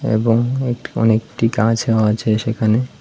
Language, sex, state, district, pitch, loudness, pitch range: Bengali, male, Tripura, West Tripura, 115 Hz, -17 LUFS, 110-120 Hz